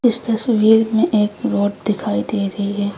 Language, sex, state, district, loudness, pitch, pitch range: Hindi, female, Uttar Pradesh, Lucknow, -17 LUFS, 210 Hz, 200-225 Hz